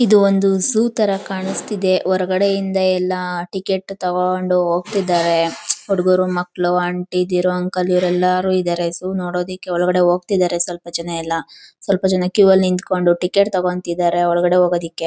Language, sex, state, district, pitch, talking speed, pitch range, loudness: Kannada, female, Karnataka, Chamarajanagar, 180 Hz, 140 wpm, 175-190 Hz, -18 LUFS